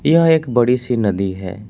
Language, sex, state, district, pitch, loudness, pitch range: Hindi, male, Jharkhand, Palamu, 120 Hz, -16 LUFS, 100-140 Hz